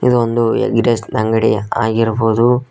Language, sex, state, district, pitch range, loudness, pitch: Kannada, male, Karnataka, Koppal, 110-120 Hz, -15 LUFS, 115 Hz